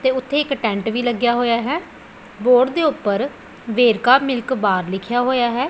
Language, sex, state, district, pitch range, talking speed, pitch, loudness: Punjabi, female, Punjab, Pathankot, 230-260 Hz, 180 wpm, 245 Hz, -18 LUFS